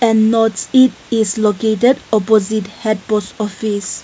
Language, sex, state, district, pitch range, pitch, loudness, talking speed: English, female, Nagaland, Kohima, 210-225 Hz, 220 Hz, -15 LUFS, 135 wpm